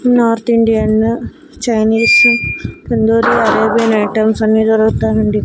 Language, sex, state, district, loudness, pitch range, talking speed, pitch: Telugu, female, Andhra Pradesh, Annamaya, -12 LUFS, 220-230 Hz, 90 wpm, 220 Hz